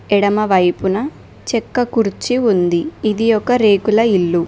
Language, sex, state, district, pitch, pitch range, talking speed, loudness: Telugu, female, Telangana, Mahabubabad, 210 Hz, 190-230 Hz, 105 wpm, -15 LUFS